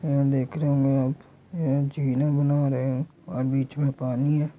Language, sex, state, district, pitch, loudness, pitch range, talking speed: Angika, male, Bihar, Samastipur, 140 Hz, -25 LUFS, 135-145 Hz, 195 wpm